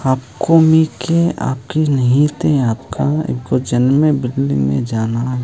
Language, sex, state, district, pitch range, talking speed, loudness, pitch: Marathi, male, Maharashtra, Sindhudurg, 115-150 Hz, 130 wpm, -15 LUFS, 130 Hz